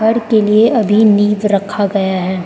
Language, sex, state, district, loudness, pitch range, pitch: Hindi, female, Arunachal Pradesh, Lower Dibang Valley, -12 LUFS, 200-220 Hz, 210 Hz